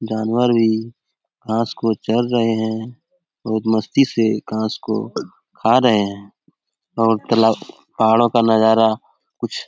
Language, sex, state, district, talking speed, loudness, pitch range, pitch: Hindi, male, Bihar, Jamui, 135 wpm, -18 LUFS, 110-115 Hz, 110 Hz